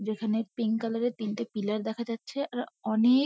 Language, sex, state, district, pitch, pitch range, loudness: Bengali, female, West Bengal, Kolkata, 225 Hz, 215-235 Hz, -31 LUFS